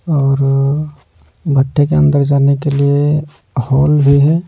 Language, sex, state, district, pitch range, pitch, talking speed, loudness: Hindi, male, Punjab, Pathankot, 135-150 Hz, 140 Hz, 135 wpm, -13 LUFS